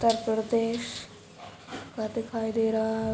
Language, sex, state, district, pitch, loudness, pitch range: Hindi, female, Uttar Pradesh, Ghazipur, 225 Hz, -29 LUFS, 220-230 Hz